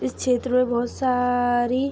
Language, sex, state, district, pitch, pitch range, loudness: Hindi, female, Jharkhand, Sahebganj, 245 Hz, 240-250 Hz, -22 LUFS